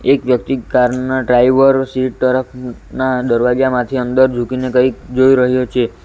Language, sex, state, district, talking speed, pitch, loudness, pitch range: Gujarati, male, Gujarat, Valsad, 160 wpm, 130 Hz, -14 LUFS, 125-130 Hz